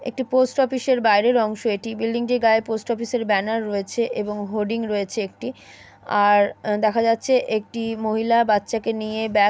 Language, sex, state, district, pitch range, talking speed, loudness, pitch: Bengali, female, West Bengal, Jalpaiguri, 210-235 Hz, 175 wpm, -21 LUFS, 225 Hz